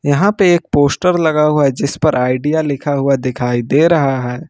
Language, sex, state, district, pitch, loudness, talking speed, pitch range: Hindi, male, Jharkhand, Ranchi, 145 Hz, -14 LUFS, 215 wpm, 130-160 Hz